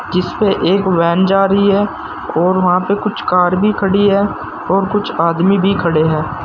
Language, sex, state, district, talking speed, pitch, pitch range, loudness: Hindi, male, Uttar Pradesh, Saharanpur, 185 wpm, 190 Hz, 170-200 Hz, -14 LUFS